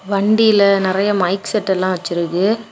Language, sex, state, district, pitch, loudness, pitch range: Tamil, female, Tamil Nadu, Kanyakumari, 195 Hz, -16 LUFS, 185-210 Hz